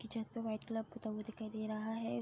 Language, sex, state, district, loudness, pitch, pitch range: Hindi, female, Bihar, Darbhanga, -42 LUFS, 220 Hz, 215-225 Hz